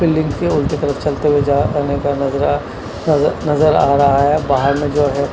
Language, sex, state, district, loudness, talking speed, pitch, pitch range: Hindi, male, Punjab, Kapurthala, -15 LUFS, 225 wpm, 145 Hz, 140-150 Hz